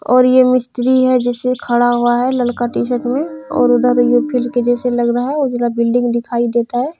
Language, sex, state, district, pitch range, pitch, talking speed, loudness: Maithili, female, Bihar, Madhepura, 240-255 Hz, 245 Hz, 205 wpm, -15 LUFS